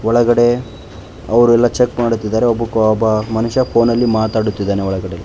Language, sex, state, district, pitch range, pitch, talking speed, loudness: Kannada, male, Karnataka, Bangalore, 105-120 Hz, 110 Hz, 115 wpm, -15 LUFS